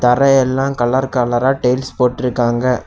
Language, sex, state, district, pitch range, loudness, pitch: Tamil, male, Tamil Nadu, Kanyakumari, 125-135 Hz, -15 LUFS, 125 Hz